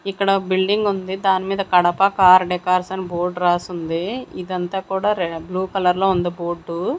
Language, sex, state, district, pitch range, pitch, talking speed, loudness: Telugu, female, Andhra Pradesh, Sri Satya Sai, 175-195 Hz, 185 Hz, 165 wpm, -19 LUFS